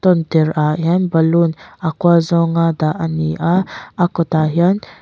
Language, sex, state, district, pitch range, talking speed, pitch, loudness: Mizo, female, Mizoram, Aizawl, 160-175 Hz, 155 wpm, 165 Hz, -16 LUFS